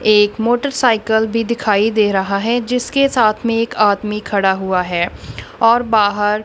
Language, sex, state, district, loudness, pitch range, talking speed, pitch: Hindi, female, Punjab, Kapurthala, -15 LUFS, 205-230 Hz, 160 wpm, 215 Hz